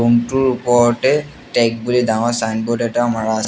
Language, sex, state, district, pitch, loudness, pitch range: Assamese, male, Assam, Sonitpur, 120 Hz, -17 LUFS, 115-120 Hz